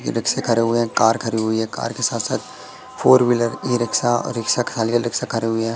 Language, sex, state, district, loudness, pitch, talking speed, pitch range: Hindi, male, Madhya Pradesh, Katni, -19 LUFS, 115 Hz, 260 wpm, 115-120 Hz